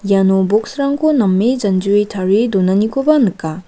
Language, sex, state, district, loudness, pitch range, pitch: Garo, female, Meghalaya, West Garo Hills, -14 LUFS, 190-240 Hz, 205 Hz